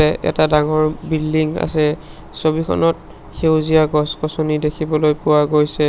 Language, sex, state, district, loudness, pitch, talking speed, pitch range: Assamese, male, Assam, Sonitpur, -17 LUFS, 155 Hz, 110 wpm, 150-155 Hz